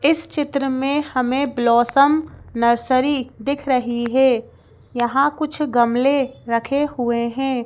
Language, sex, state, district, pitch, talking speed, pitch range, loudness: Hindi, female, Madhya Pradesh, Bhopal, 265 Hz, 115 wpm, 240-280 Hz, -19 LUFS